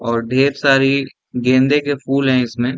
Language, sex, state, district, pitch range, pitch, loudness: Hindi, male, Bihar, Sitamarhi, 125-140 Hz, 135 Hz, -16 LUFS